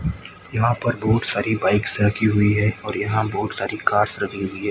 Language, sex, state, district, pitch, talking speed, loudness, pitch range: Hindi, male, Maharashtra, Gondia, 105 Hz, 205 wpm, -20 LUFS, 105-110 Hz